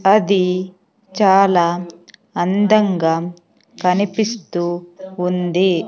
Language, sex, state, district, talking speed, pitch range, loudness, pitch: Telugu, female, Andhra Pradesh, Sri Satya Sai, 50 wpm, 175-200 Hz, -17 LUFS, 185 Hz